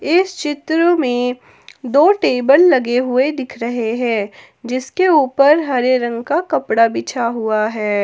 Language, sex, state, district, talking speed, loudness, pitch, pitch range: Hindi, female, Jharkhand, Ranchi, 140 wpm, -16 LUFS, 255 Hz, 235-300 Hz